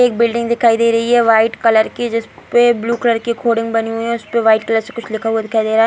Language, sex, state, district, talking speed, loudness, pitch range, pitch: Hindi, female, Bihar, Muzaffarpur, 295 wpm, -15 LUFS, 225-235 Hz, 230 Hz